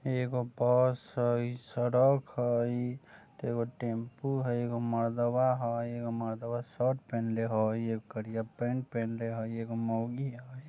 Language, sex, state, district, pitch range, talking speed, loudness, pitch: Bajjika, male, Bihar, Vaishali, 115-125 Hz, 145 wpm, -32 LUFS, 120 Hz